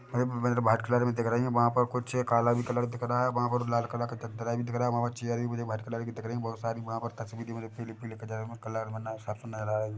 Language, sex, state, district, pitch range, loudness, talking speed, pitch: Hindi, male, Chhattisgarh, Bilaspur, 115-120 Hz, -31 LUFS, 240 wpm, 115 Hz